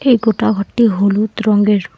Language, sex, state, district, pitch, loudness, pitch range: Bengali, female, West Bengal, Alipurduar, 215 Hz, -14 LUFS, 205-230 Hz